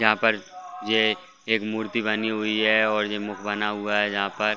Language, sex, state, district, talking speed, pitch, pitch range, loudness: Hindi, male, Chhattisgarh, Bastar, 225 wpm, 110 Hz, 105-110 Hz, -24 LUFS